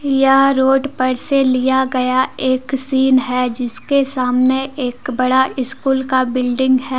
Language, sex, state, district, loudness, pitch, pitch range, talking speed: Hindi, female, Jharkhand, Deoghar, -16 LUFS, 260 Hz, 255-270 Hz, 145 wpm